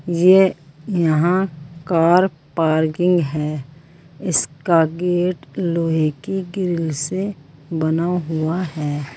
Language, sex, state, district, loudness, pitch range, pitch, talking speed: Hindi, female, Uttar Pradesh, Saharanpur, -19 LUFS, 155-180 Hz, 165 Hz, 90 wpm